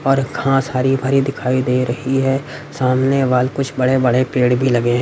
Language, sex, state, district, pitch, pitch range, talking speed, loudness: Hindi, male, Haryana, Rohtak, 130 Hz, 125-135 Hz, 190 wpm, -17 LUFS